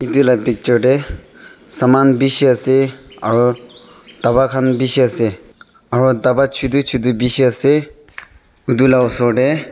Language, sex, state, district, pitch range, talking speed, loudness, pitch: Nagamese, male, Nagaland, Dimapur, 120-135 Hz, 140 wpm, -14 LUFS, 130 Hz